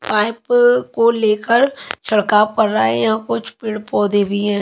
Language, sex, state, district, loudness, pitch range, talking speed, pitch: Hindi, female, Maharashtra, Mumbai Suburban, -16 LUFS, 200-230 Hz, 170 wpm, 210 Hz